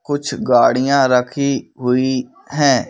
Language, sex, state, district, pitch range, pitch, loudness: Hindi, male, Madhya Pradesh, Bhopal, 125-140 Hz, 135 Hz, -16 LUFS